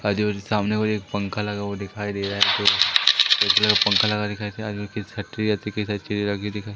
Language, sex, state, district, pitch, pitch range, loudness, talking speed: Hindi, male, Madhya Pradesh, Umaria, 105 Hz, 100-105 Hz, -21 LUFS, 185 wpm